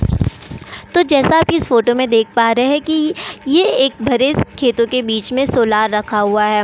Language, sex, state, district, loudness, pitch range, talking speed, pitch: Hindi, female, Goa, North and South Goa, -15 LUFS, 225-290 Hz, 200 wpm, 250 Hz